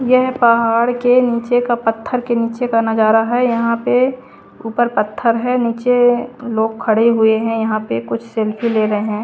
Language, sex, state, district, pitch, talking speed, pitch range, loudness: Hindi, female, Haryana, Charkhi Dadri, 230 Hz, 180 wpm, 225-245 Hz, -16 LUFS